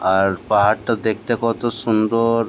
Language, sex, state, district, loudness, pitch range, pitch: Bengali, male, West Bengal, Jalpaiguri, -19 LUFS, 105-115 Hz, 110 Hz